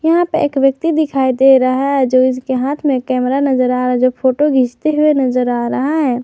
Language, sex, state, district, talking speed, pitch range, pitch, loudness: Hindi, female, Jharkhand, Garhwa, 260 wpm, 255-290 Hz, 265 Hz, -14 LUFS